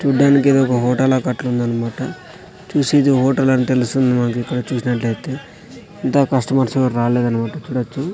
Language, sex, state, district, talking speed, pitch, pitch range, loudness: Telugu, male, Andhra Pradesh, Sri Satya Sai, 135 wpm, 130 Hz, 125-140 Hz, -17 LUFS